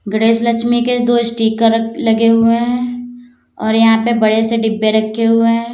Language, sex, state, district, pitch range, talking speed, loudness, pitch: Hindi, female, Uttar Pradesh, Lalitpur, 225-235 Hz, 175 wpm, -13 LUFS, 230 Hz